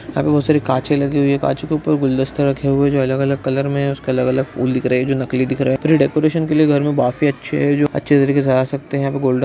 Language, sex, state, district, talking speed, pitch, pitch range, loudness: Hindi, male, Chhattisgarh, Bilaspur, 300 wpm, 140 Hz, 130-145 Hz, -17 LUFS